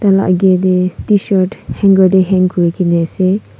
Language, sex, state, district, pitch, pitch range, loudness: Nagamese, female, Nagaland, Kohima, 185 Hz, 185-195 Hz, -12 LUFS